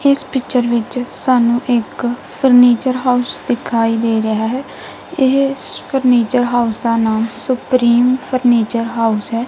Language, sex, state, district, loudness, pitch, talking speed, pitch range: Punjabi, female, Punjab, Kapurthala, -15 LUFS, 245 Hz, 125 wpm, 230-255 Hz